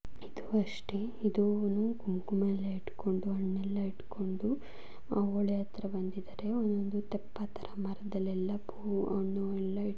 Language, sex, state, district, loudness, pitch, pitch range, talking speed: Kannada, female, Karnataka, Dharwad, -35 LUFS, 200 Hz, 195-205 Hz, 115 wpm